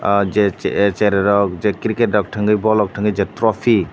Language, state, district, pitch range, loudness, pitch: Kokborok, Tripura, Dhalai, 100-110 Hz, -17 LUFS, 105 Hz